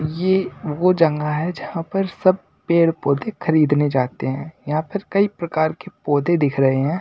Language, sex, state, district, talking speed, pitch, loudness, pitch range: Hindi, male, Delhi, New Delhi, 170 wpm, 160 Hz, -20 LUFS, 150-185 Hz